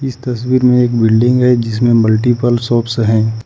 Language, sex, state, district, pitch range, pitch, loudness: Hindi, male, Jharkhand, Ranchi, 115-125 Hz, 120 Hz, -12 LUFS